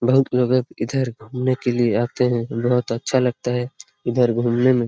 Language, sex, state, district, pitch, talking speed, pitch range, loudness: Hindi, male, Bihar, Lakhisarai, 125 Hz, 185 wpm, 120-125 Hz, -21 LUFS